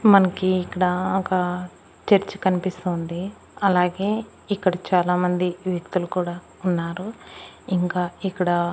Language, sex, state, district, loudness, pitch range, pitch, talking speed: Telugu, female, Andhra Pradesh, Annamaya, -23 LUFS, 180-190 Hz, 180 Hz, 90 wpm